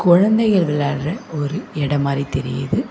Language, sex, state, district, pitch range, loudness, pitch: Tamil, female, Tamil Nadu, Namakkal, 140-195 Hz, -19 LUFS, 150 Hz